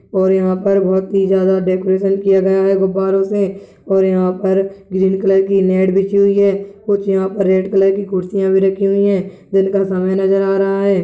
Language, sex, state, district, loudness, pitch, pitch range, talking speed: Hindi, male, Chhattisgarh, Balrampur, -15 LUFS, 195 Hz, 190-195 Hz, 225 wpm